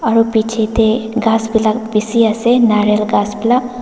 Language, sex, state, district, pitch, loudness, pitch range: Nagamese, female, Nagaland, Dimapur, 225 Hz, -14 LUFS, 215-230 Hz